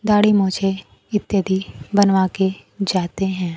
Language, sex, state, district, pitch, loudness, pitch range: Hindi, female, Bihar, Kaimur, 195 Hz, -19 LUFS, 190-200 Hz